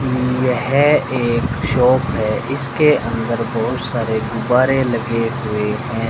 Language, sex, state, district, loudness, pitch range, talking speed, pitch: Hindi, male, Rajasthan, Bikaner, -17 LUFS, 115-130 Hz, 120 wpm, 125 Hz